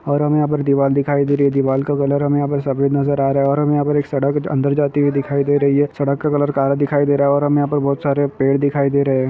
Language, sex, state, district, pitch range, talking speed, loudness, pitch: Hindi, male, Jharkhand, Jamtara, 140-145 Hz, 325 wpm, -17 LUFS, 140 Hz